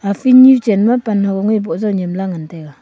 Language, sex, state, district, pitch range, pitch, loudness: Wancho, female, Arunachal Pradesh, Longding, 190-230 Hz, 205 Hz, -13 LUFS